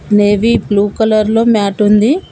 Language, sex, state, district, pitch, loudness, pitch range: Telugu, female, Telangana, Komaram Bheem, 215 Hz, -11 LUFS, 205-225 Hz